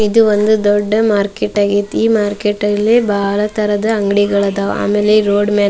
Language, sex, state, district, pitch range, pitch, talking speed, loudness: Kannada, female, Karnataka, Dharwad, 205-215 Hz, 205 Hz, 170 wpm, -14 LUFS